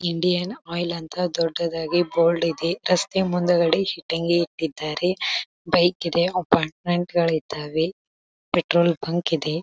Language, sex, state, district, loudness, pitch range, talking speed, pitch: Kannada, female, Karnataka, Belgaum, -23 LUFS, 165-175 Hz, 105 wpm, 170 Hz